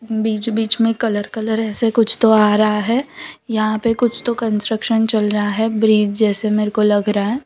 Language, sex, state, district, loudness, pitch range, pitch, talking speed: Hindi, female, Gujarat, Valsad, -17 LUFS, 210-225 Hz, 220 Hz, 210 wpm